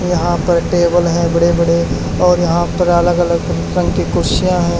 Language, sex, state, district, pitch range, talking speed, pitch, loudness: Hindi, male, Haryana, Charkhi Dadri, 170-175 Hz, 185 wpm, 170 Hz, -14 LUFS